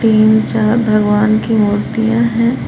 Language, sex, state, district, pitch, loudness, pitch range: Hindi, female, Jharkhand, Palamu, 220 Hz, -13 LUFS, 215-230 Hz